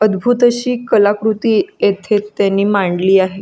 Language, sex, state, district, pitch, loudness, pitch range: Marathi, female, Maharashtra, Solapur, 210 Hz, -14 LUFS, 195-225 Hz